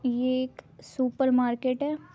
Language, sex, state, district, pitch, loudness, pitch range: Hindi, female, Maharashtra, Aurangabad, 255 Hz, -27 LUFS, 250-265 Hz